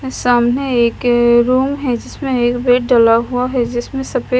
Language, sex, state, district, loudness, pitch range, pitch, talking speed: Hindi, female, Punjab, Kapurthala, -15 LUFS, 240-255 Hz, 245 Hz, 165 wpm